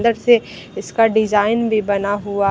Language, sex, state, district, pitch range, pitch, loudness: Hindi, female, Bihar, Katihar, 205-230 Hz, 215 Hz, -17 LUFS